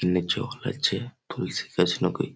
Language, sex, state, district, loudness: Bengali, male, West Bengal, Malda, -27 LUFS